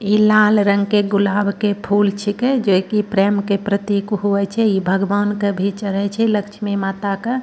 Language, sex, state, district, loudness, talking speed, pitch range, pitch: Angika, female, Bihar, Bhagalpur, -17 LUFS, 185 wpm, 200-210 Hz, 205 Hz